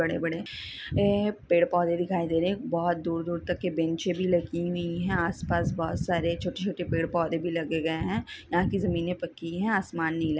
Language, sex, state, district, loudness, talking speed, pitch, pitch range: Hindi, female, Bihar, Saran, -28 LUFS, 195 wpm, 170 Hz, 165-180 Hz